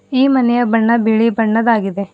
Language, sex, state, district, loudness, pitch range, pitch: Kannada, female, Karnataka, Bidar, -14 LUFS, 220-240 Hz, 230 Hz